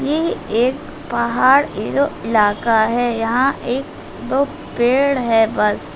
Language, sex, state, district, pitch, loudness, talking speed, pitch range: Hindi, female, Bihar, Araria, 250 Hz, -17 LUFS, 120 wpm, 225-275 Hz